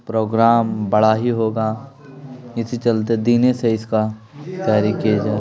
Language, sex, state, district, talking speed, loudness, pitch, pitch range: Hindi, male, Bihar, Patna, 145 wpm, -18 LUFS, 115 Hz, 110-120 Hz